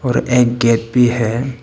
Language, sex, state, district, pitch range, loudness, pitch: Hindi, male, Arunachal Pradesh, Papum Pare, 115-125 Hz, -15 LUFS, 120 Hz